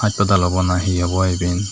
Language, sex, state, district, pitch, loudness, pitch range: Chakma, male, Tripura, Dhalai, 95 Hz, -18 LUFS, 90-100 Hz